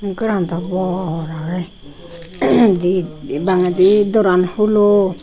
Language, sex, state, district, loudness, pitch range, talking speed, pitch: Chakma, female, Tripura, Unakoti, -16 LUFS, 170-200 Hz, 90 wpm, 180 Hz